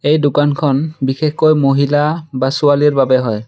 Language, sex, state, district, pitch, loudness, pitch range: Assamese, male, Assam, Sonitpur, 145 Hz, -14 LUFS, 135-150 Hz